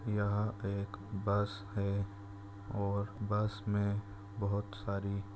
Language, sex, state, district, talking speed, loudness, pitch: Hindi, male, Maharashtra, Aurangabad, 100 wpm, -37 LUFS, 100 Hz